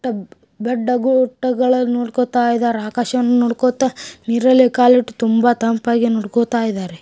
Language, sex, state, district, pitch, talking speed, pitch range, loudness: Kannada, female, Karnataka, Bijapur, 240 Hz, 110 wpm, 235-250 Hz, -16 LUFS